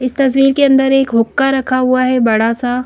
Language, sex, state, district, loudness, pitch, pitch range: Hindi, female, Madhya Pradesh, Bhopal, -12 LUFS, 255 Hz, 245-270 Hz